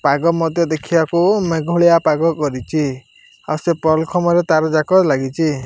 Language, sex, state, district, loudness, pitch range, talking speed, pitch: Odia, male, Odisha, Malkangiri, -16 LUFS, 155-170 Hz, 115 wpm, 160 Hz